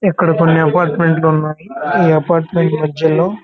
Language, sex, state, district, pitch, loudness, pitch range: Telugu, male, Andhra Pradesh, Guntur, 165 Hz, -14 LUFS, 155-175 Hz